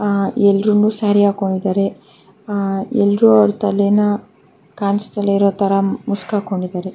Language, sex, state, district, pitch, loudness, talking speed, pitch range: Kannada, female, Karnataka, Mysore, 200 Hz, -16 LUFS, 95 wpm, 195-205 Hz